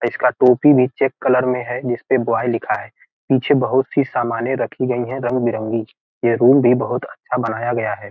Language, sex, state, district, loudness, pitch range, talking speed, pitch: Hindi, male, Bihar, Gopalganj, -18 LUFS, 120-130 Hz, 205 wpm, 125 Hz